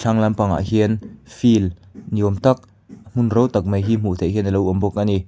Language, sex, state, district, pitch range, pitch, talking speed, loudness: Mizo, male, Mizoram, Aizawl, 100-110 Hz, 105 Hz, 250 wpm, -19 LUFS